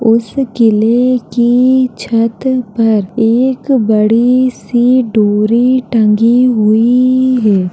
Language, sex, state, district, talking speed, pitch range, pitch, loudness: Hindi, female, Uttar Pradesh, Jalaun, 95 wpm, 220-255 Hz, 235 Hz, -11 LUFS